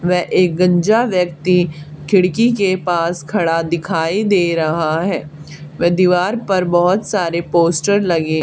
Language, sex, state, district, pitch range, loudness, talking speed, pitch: Hindi, female, Haryana, Charkhi Dadri, 165-190 Hz, -16 LUFS, 135 wpm, 175 Hz